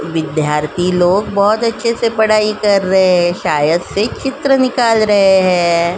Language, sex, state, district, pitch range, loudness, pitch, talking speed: Hindi, female, Uttar Pradesh, Jalaun, 175-220 Hz, -13 LUFS, 195 Hz, 150 wpm